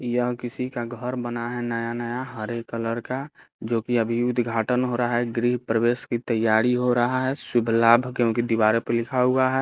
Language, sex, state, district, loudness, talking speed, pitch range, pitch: Hindi, male, Bihar, Patna, -24 LUFS, 205 wpm, 115-125 Hz, 120 Hz